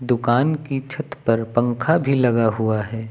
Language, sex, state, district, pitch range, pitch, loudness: Hindi, male, Uttar Pradesh, Lucknow, 115-140 Hz, 120 Hz, -20 LUFS